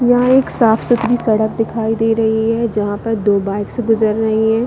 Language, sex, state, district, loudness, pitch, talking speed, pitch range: Hindi, female, Chhattisgarh, Bilaspur, -15 LUFS, 225 Hz, 205 wpm, 220-235 Hz